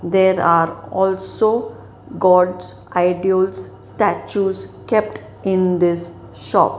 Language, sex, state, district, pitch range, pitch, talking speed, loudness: English, female, Maharashtra, Mumbai Suburban, 175-190 Hz, 185 Hz, 90 wpm, -18 LUFS